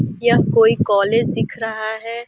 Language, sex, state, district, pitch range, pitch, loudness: Hindi, female, Uttar Pradesh, Deoria, 215-235 Hz, 225 Hz, -17 LUFS